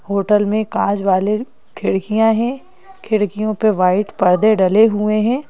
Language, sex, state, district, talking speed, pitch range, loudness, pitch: Hindi, female, Madhya Pradesh, Bhopal, 140 wpm, 200-225 Hz, -16 LUFS, 215 Hz